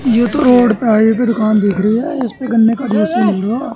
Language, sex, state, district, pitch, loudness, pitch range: Hindi, male, Haryana, Jhajjar, 230 Hz, -13 LUFS, 215-245 Hz